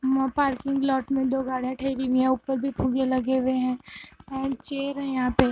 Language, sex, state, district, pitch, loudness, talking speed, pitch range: Hindi, female, Punjab, Fazilka, 265 Hz, -26 LUFS, 215 wpm, 260-270 Hz